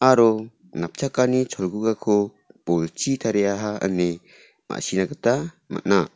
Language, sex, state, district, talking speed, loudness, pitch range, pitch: Garo, male, Meghalaya, South Garo Hills, 90 wpm, -23 LUFS, 95-125 Hz, 105 Hz